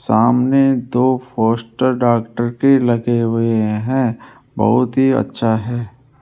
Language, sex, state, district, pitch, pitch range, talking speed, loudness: Hindi, male, Rajasthan, Jaipur, 120 Hz, 115-130 Hz, 115 wpm, -16 LUFS